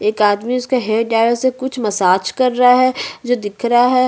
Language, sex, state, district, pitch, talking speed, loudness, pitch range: Hindi, female, Chhattisgarh, Bastar, 240 Hz, 220 wpm, -16 LUFS, 215-255 Hz